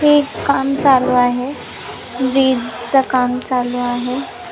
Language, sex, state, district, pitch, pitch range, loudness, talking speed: Marathi, female, Maharashtra, Nagpur, 255 Hz, 245-270 Hz, -16 LUFS, 120 wpm